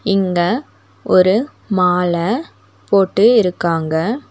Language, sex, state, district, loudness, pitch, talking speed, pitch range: Tamil, female, Tamil Nadu, Nilgiris, -16 LUFS, 185 Hz, 70 wpm, 175-220 Hz